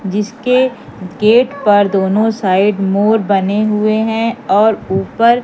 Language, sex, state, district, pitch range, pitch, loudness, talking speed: Hindi, female, Madhya Pradesh, Katni, 200-230 Hz, 210 Hz, -13 LUFS, 120 wpm